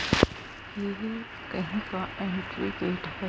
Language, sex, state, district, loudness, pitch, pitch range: Hindi, female, Haryana, Jhajjar, -31 LUFS, 190 Hz, 185-210 Hz